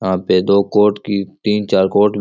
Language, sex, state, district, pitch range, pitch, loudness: Rajasthani, male, Rajasthan, Churu, 95-105 Hz, 100 Hz, -15 LUFS